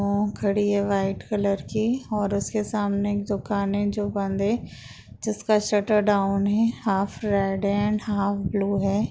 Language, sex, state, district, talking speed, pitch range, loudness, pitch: Hindi, female, Uttar Pradesh, Jalaun, 145 wpm, 200-210 Hz, -24 LUFS, 200 Hz